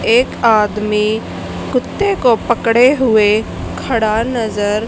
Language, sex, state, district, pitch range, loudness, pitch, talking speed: Hindi, female, Haryana, Charkhi Dadri, 215-250 Hz, -14 LUFS, 225 Hz, 100 wpm